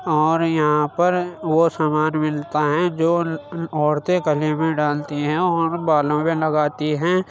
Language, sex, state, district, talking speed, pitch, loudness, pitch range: Hindi, male, Uttar Pradesh, Jyotiba Phule Nagar, 150 wpm, 155 Hz, -20 LUFS, 150-165 Hz